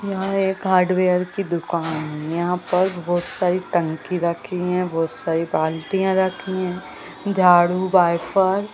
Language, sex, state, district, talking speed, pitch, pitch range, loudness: Hindi, female, Madhya Pradesh, Bhopal, 145 wpm, 180 Hz, 170-190 Hz, -20 LUFS